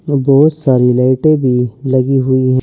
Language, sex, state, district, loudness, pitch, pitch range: Hindi, male, Uttar Pradesh, Saharanpur, -12 LUFS, 130 Hz, 130-140 Hz